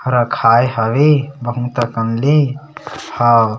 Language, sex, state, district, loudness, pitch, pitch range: Chhattisgarhi, male, Chhattisgarh, Sarguja, -15 LUFS, 120 Hz, 115-140 Hz